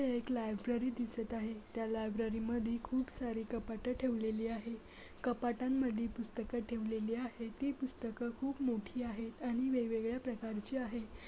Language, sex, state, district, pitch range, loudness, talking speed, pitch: Marathi, female, Maharashtra, Dhule, 225-250 Hz, -39 LUFS, 135 wpm, 235 Hz